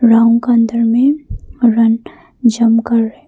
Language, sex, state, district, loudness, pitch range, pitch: Hindi, female, Arunachal Pradesh, Papum Pare, -13 LUFS, 230-235 Hz, 230 Hz